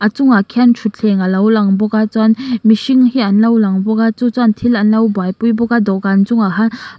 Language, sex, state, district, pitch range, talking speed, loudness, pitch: Mizo, female, Mizoram, Aizawl, 210-235 Hz, 265 wpm, -13 LUFS, 220 Hz